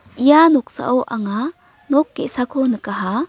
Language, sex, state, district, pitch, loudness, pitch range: Garo, female, Meghalaya, North Garo Hills, 255 Hz, -17 LUFS, 230-290 Hz